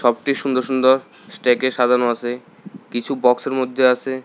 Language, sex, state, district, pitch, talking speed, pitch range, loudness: Bengali, male, Tripura, South Tripura, 130 Hz, 185 wpm, 125-130 Hz, -19 LUFS